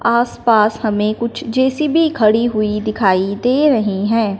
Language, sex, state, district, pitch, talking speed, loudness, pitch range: Hindi, male, Punjab, Fazilka, 225 Hz, 150 wpm, -15 LUFS, 210-245 Hz